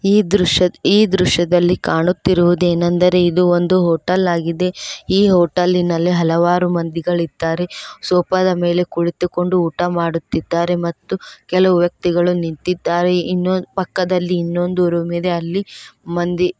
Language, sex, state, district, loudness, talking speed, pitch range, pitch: Kannada, female, Karnataka, Koppal, -16 LUFS, 100 wpm, 170-180 Hz, 175 Hz